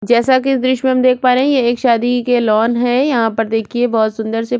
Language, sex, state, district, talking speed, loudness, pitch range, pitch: Hindi, female, Chhattisgarh, Kabirdham, 275 wpm, -14 LUFS, 225-255 Hz, 245 Hz